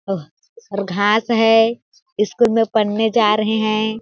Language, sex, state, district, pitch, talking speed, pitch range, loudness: Hindi, female, Chhattisgarh, Balrampur, 220 Hz, 150 wpm, 210-225 Hz, -17 LUFS